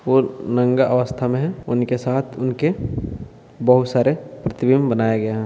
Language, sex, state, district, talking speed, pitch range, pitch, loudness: Hindi, male, Bihar, Purnia, 155 wpm, 120-130 Hz, 125 Hz, -20 LUFS